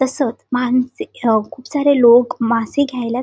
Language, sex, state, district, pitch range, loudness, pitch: Marathi, female, Maharashtra, Sindhudurg, 235-265 Hz, -16 LUFS, 250 Hz